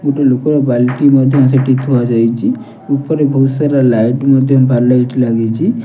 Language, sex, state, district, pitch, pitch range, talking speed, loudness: Odia, male, Odisha, Nuapada, 130 Hz, 125-140 Hz, 155 wpm, -12 LUFS